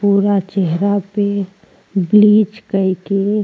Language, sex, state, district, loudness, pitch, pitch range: Bhojpuri, female, Uttar Pradesh, Ghazipur, -15 LUFS, 200 Hz, 195-205 Hz